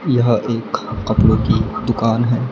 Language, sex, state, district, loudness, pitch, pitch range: Hindi, male, Maharashtra, Gondia, -17 LUFS, 120 Hz, 115-120 Hz